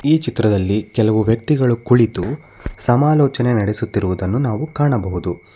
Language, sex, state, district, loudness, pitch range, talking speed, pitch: Kannada, male, Karnataka, Bangalore, -17 LUFS, 100-130 Hz, 85 wpm, 115 Hz